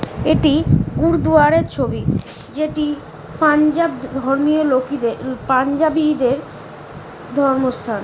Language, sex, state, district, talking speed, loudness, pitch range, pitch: Bengali, female, West Bengal, Kolkata, 90 wpm, -17 LUFS, 255-305 Hz, 275 Hz